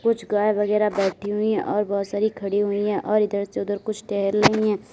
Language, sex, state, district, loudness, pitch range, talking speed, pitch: Hindi, female, Uttar Pradesh, Lalitpur, -23 LUFS, 200-215 Hz, 230 wpm, 210 Hz